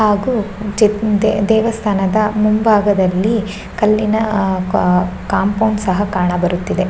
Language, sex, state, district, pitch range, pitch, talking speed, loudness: Kannada, female, Karnataka, Shimoga, 190-215 Hz, 210 Hz, 95 wpm, -15 LUFS